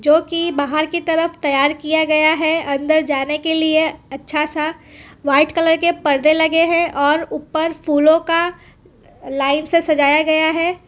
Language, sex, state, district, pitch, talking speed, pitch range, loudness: Hindi, female, Gujarat, Valsad, 315 Hz, 160 wpm, 295-325 Hz, -16 LUFS